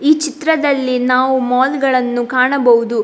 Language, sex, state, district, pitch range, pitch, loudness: Kannada, female, Karnataka, Dakshina Kannada, 250-280 Hz, 260 Hz, -14 LUFS